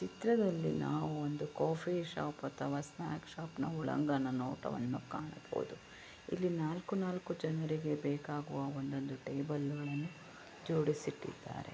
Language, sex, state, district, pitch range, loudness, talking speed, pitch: Kannada, female, Karnataka, Belgaum, 145-165 Hz, -39 LUFS, 110 wpm, 150 Hz